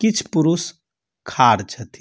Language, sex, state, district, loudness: Maithili, male, Bihar, Samastipur, -18 LUFS